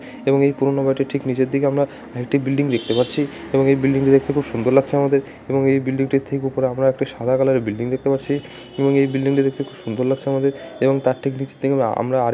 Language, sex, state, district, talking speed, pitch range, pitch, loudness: Bengali, male, West Bengal, Malda, 245 wpm, 130-140 Hz, 135 Hz, -19 LUFS